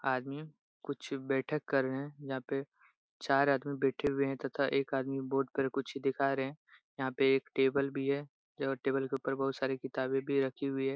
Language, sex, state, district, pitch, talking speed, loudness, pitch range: Hindi, male, Bihar, Jahanabad, 135 Hz, 210 wpm, -34 LUFS, 135-140 Hz